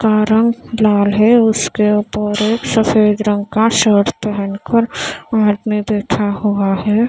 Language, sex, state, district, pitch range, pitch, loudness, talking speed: Hindi, female, Maharashtra, Mumbai Suburban, 205-220 Hz, 210 Hz, -14 LUFS, 145 wpm